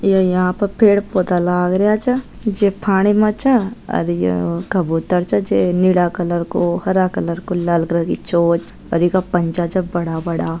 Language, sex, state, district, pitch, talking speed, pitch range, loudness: Marwari, female, Rajasthan, Nagaur, 180 Hz, 190 wpm, 170-200 Hz, -17 LUFS